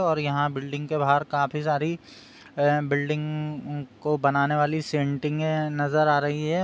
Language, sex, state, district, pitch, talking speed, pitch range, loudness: Hindi, male, Bihar, Sitamarhi, 150 Hz, 155 wpm, 145-155 Hz, -25 LUFS